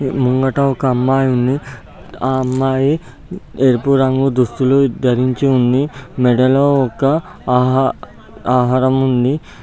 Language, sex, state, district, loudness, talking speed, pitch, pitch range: Telugu, male, Andhra Pradesh, Guntur, -15 LUFS, 95 wpm, 130 Hz, 125-135 Hz